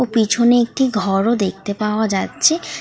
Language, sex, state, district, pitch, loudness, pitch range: Bengali, female, West Bengal, North 24 Parganas, 220 Hz, -17 LUFS, 200-240 Hz